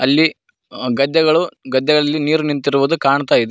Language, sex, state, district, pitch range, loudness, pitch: Kannada, male, Karnataka, Koppal, 140-160 Hz, -16 LUFS, 150 Hz